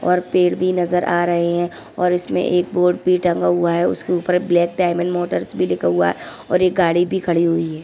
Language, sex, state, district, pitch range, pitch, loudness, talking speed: Hindi, female, Chhattisgarh, Bilaspur, 170-180 Hz, 175 Hz, -18 LUFS, 230 wpm